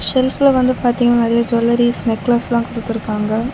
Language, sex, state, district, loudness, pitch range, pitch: Tamil, female, Tamil Nadu, Chennai, -16 LUFS, 230-245 Hz, 235 Hz